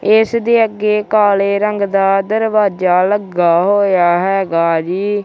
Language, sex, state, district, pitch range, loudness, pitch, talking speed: Punjabi, male, Punjab, Kapurthala, 185-210 Hz, -13 LUFS, 200 Hz, 125 wpm